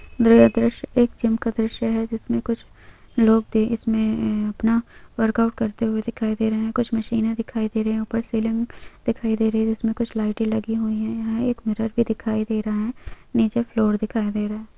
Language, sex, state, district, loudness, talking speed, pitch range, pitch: Hindi, female, Chhattisgarh, Rajnandgaon, -22 LUFS, 210 wpm, 220-230 Hz, 225 Hz